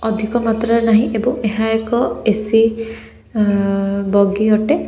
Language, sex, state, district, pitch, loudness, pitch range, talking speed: Odia, female, Odisha, Khordha, 220 Hz, -16 LUFS, 215-225 Hz, 110 wpm